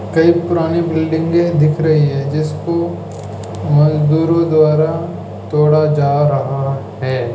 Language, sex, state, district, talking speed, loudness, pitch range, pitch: Hindi, male, Rajasthan, Jaipur, 105 wpm, -14 LUFS, 135-160 Hz, 150 Hz